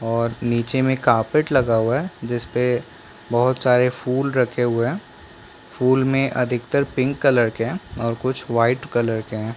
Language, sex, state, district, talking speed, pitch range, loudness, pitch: Hindi, male, Chhattisgarh, Balrampur, 175 wpm, 115-130 Hz, -20 LUFS, 120 Hz